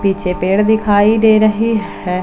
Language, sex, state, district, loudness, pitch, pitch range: Hindi, female, Jharkhand, Palamu, -13 LUFS, 210 Hz, 190-220 Hz